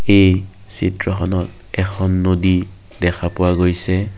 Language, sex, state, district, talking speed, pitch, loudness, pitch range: Assamese, male, Assam, Kamrup Metropolitan, 100 wpm, 95 Hz, -17 LUFS, 90-95 Hz